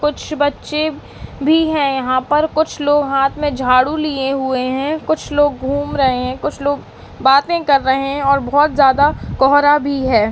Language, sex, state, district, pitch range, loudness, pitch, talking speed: Hindi, female, Uttarakhand, Uttarkashi, 270-295 Hz, -16 LUFS, 285 Hz, 180 wpm